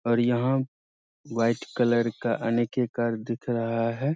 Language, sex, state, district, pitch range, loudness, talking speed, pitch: Hindi, male, Bihar, Saharsa, 115-120 Hz, -26 LUFS, 130 wpm, 120 Hz